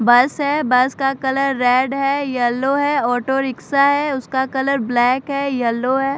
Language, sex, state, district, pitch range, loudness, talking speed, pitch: Hindi, female, Maharashtra, Mumbai Suburban, 250-275 Hz, -18 LUFS, 175 wpm, 270 Hz